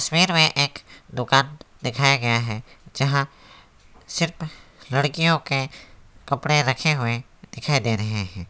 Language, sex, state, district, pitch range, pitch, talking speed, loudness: Hindi, male, West Bengal, Alipurduar, 115-150 Hz, 135 Hz, 125 wpm, -22 LUFS